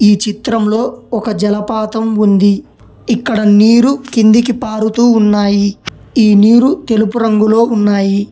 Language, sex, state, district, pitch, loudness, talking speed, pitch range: Telugu, male, Telangana, Hyderabad, 220 Hz, -11 LUFS, 110 wpm, 210-230 Hz